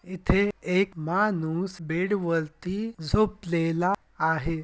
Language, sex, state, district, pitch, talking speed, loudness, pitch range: Marathi, male, Maharashtra, Dhule, 180 Hz, 90 wpm, -27 LUFS, 165-195 Hz